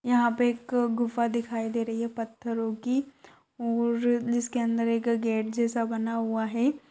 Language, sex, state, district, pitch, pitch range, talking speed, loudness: Hindi, female, Chhattisgarh, Kabirdham, 235 Hz, 230-240 Hz, 165 wpm, -28 LUFS